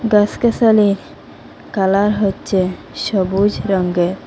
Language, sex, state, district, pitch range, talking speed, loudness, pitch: Bengali, female, Assam, Hailakandi, 190-210 Hz, 70 wpm, -16 LUFS, 200 Hz